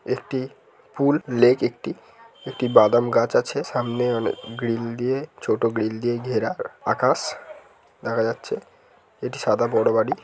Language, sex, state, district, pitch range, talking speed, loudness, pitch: Bengali, male, West Bengal, Kolkata, 115-130 Hz, 130 wpm, -23 LUFS, 120 Hz